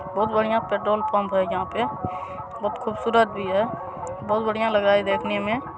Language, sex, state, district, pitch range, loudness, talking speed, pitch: Hindi, male, Bihar, Supaul, 190-220 Hz, -24 LUFS, 185 wpm, 205 Hz